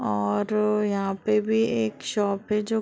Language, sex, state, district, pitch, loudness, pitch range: Hindi, female, Uttar Pradesh, Deoria, 210 Hz, -25 LUFS, 195-215 Hz